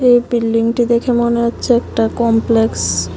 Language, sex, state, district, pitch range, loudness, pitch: Bengali, female, Tripura, West Tripura, 225-240 Hz, -15 LUFS, 235 Hz